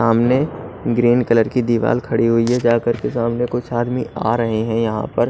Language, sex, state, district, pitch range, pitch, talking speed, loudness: Hindi, male, Odisha, Nuapada, 115-120 Hz, 120 Hz, 205 wpm, -18 LUFS